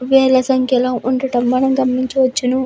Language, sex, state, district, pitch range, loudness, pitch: Telugu, female, Andhra Pradesh, Visakhapatnam, 255-265 Hz, -15 LUFS, 255 Hz